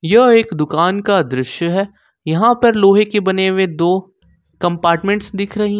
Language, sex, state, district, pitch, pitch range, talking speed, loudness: Hindi, male, Jharkhand, Ranchi, 195 Hz, 170-210 Hz, 175 wpm, -15 LUFS